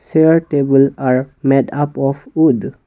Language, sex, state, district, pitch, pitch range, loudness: English, male, Assam, Kamrup Metropolitan, 140 Hz, 135-150 Hz, -14 LUFS